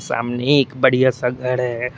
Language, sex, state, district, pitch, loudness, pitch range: Hindi, male, Tripura, West Tripura, 125 Hz, -18 LUFS, 125-130 Hz